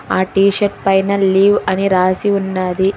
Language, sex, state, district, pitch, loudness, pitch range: Telugu, female, Telangana, Hyderabad, 195 Hz, -14 LUFS, 185-200 Hz